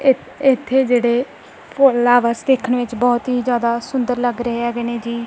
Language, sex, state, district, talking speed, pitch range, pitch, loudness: Punjabi, female, Punjab, Kapurthala, 180 wpm, 235-260 Hz, 245 Hz, -17 LUFS